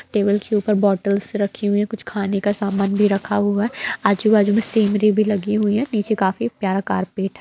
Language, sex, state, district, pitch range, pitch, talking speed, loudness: Hindi, female, Bihar, Sitamarhi, 200-215 Hz, 205 Hz, 220 wpm, -19 LUFS